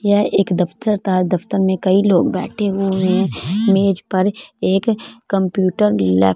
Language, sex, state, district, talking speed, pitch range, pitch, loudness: Hindi, female, Punjab, Fazilka, 150 wpm, 185-205 Hz, 195 Hz, -17 LUFS